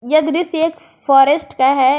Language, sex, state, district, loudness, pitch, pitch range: Hindi, female, Jharkhand, Garhwa, -15 LUFS, 295 Hz, 270-325 Hz